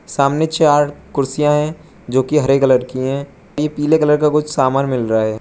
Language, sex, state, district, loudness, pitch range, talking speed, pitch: Hindi, male, Arunachal Pradesh, Lower Dibang Valley, -16 LUFS, 130-150 Hz, 210 wpm, 145 Hz